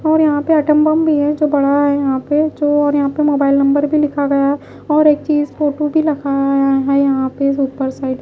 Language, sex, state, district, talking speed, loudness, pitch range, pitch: Hindi, female, Punjab, Pathankot, 240 wpm, -15 LUFS, 275-300 Hz, 290 Hz